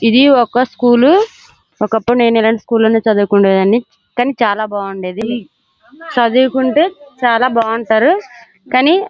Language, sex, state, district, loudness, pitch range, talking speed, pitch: Telugu, female, Andhra Pradesh, Srikakulam, -13 LUFS, 220-260 Hz, 100 wpm, 240 Hz